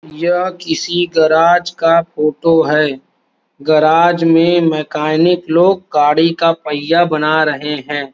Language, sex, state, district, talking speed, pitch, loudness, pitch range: Hindi, male, Uttar Pradesh, Varanasi, 125 wpm, 160 Hz, -13 LUFS, 150-170 Hz